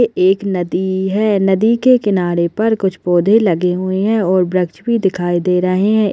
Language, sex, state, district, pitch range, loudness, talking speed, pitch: Hindi, female, Chhattisgarh, Kabirdham, 180-215 Hz, -15 LUFS, 185 wpm, 190 Hz